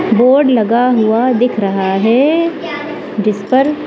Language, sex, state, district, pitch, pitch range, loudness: Hindi, female, Punjab, Kapurthala, 245 Hz, 215-285 Hz, -13 LUFS